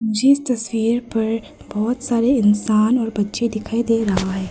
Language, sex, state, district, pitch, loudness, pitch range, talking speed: Hindi, female, Arunachal Pradesh, Papum Pare, 225 Hz, -19 LUFS, 215-235 Hz, 175 wpm